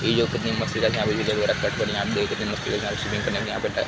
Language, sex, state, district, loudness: Hindi, male, Bihar, Araria, -24 LUFS